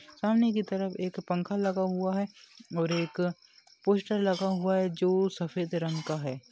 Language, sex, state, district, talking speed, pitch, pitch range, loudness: Hindi, female, Bihar, Jahanabad, 175 wpm, 185 Hz, 170-195 Hz, -30 LUFS